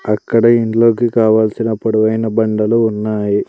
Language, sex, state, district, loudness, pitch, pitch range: Telugu, male, Andhra Pradesh, Sri Satya Sai, -14 LUFS, 110 Hz, 110-115 Hz